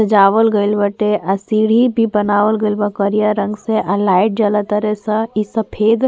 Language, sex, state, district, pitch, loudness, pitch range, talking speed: Bhojpuri, female, Uttar Pradesh, Ghazipur, 210 Hz, -15 LUFS, 205-220 Hz, 195 wpm